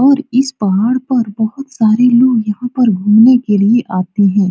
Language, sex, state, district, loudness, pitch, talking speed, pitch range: Hindi, female, Bihar, Supaul, -12 LUFS, 230 Hz, 185 wpm, 205-255 Hz